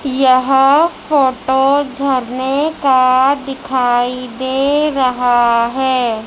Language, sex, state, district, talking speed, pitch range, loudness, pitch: Hindi, female, Madhya Pradesh, Dhar, 75 wpm, 255-275 Hz, -14 LUFS, 265 Hz